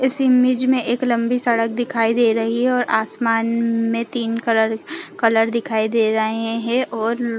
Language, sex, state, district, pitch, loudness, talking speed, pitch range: Hindi, female, Chhattisgarh, Balrampur, 230 Hz, -19 LUFS, 170 wpm, 225-245 Hz